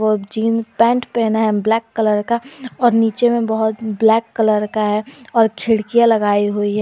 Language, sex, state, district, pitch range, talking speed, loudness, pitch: Hindi, female, Jharkhand, Garhwa, 215-230 Hz, 185 wpm, -17 LUFS, 225 Hz